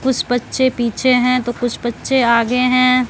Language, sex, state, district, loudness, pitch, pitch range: Hindi, female, Bihar, West Champaran, -16 LUFS, 250 Hz, 240-255 Hz